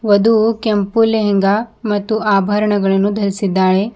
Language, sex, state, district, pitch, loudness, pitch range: Kannada, female, Karnataka, Bidar, 205 Hz, -15 LUFS, 200-220 Hz